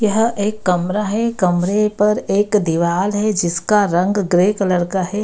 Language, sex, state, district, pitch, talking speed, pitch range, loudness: Hindi, female, Bihar, Gaya, 200 Hz, 170 wpm, 180-210 Hz, -17 LUFS